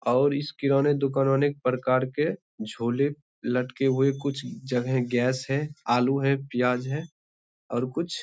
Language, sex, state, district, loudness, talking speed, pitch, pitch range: Hindi, male, Bihar, Bhagalpur, -26 LUFS, 155 wpm, 135 Hz, 125-140 Hz